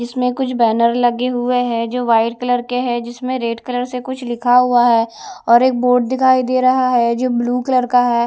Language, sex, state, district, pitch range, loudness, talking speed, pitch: Hindi, female, Odisha, Malkangiri, 240-250 Hz, -16 LUFS, 225 wpm, 245 Hz